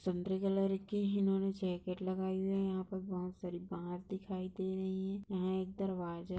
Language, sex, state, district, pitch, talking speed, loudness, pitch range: Hindi, female, Uttar Pradesh, Etah, 190 Hz, 195 wpm, -38 LUFS, 185-195 Hz